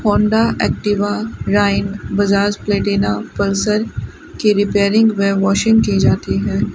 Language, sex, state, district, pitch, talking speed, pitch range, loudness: Hindi, female, Rajasthan, Bikaner, 205 Hz, 115 wpm, 200-210 Hz, -16 LUFS